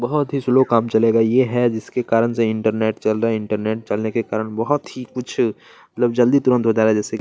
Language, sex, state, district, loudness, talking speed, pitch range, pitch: Hindi, male, Chhattisgarh, Kabirdham, -19 LUFS, 260 wpm, 110-125 Hz, 115 Hz